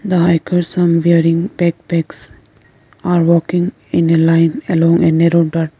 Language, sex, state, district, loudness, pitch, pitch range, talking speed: English, female, Arunachal Pradesh, Lower Dibang Valley, -14 LUFS, 165 Hz, 165-170 Hz, 165 wpm